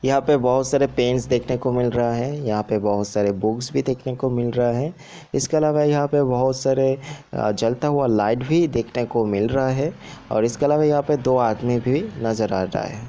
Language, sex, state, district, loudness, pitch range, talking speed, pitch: Hindi, male, Bihar, Sitamarhi, -21 LUFS, 115-145 Hz, 220 wpm, 130 Hz